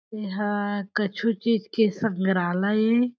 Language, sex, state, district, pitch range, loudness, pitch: Chhattisgarhi, female, Chhattisgarh, Jashpur, 200-225 Hz, -24 LUFS, 210 Hz